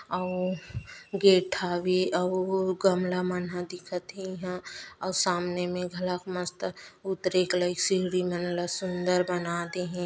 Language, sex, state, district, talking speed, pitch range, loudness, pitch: Chhattisgarhi, female, Chhattisgarh, Bastar, 150 wpm, 180-185 Hz, -28 LUFS, 180 Hz